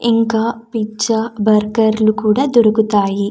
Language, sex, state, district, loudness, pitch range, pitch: Telugu, female, Andhra Pradesh, Anantapur, -15 LUFS, 210-230 Hz, 220 Hz